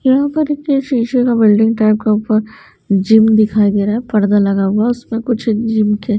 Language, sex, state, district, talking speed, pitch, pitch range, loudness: Hindi, female, Bihar, Patna, 205 wpm, 220 Hz, 210-240 Hz, -14 LUFS